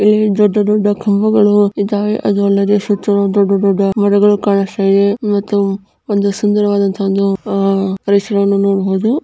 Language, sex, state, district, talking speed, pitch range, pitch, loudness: Kannada, female, Karnataka, Bijapur, 125 wpm, 200-205 Hz, 200 Hz, -13 LUFS